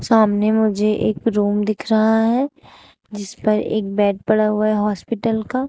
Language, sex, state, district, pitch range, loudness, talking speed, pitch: Hindi, female, Uttar Pradesh, Shamli, 210-225 Hz, -18 LUFS, 170 wpm, 215 Hz